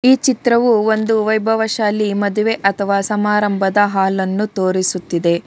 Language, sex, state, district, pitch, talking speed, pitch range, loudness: Kannada, female, Karnataka, Bangalore, 210 Hz, 120 wpm, 195-220 Hz, -16 LUFS